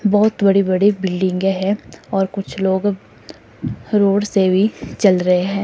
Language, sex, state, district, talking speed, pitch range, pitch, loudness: Hindi, female, Himachal Pradesh, Shimla, 150 wpm, 190-205 Hz, 195 Hz, -17 LUFS